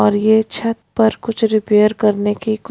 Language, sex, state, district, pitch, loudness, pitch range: Hindi, female, Punjab, Pathankot, 220 Hz, -16 LUFS, 210-225 Hz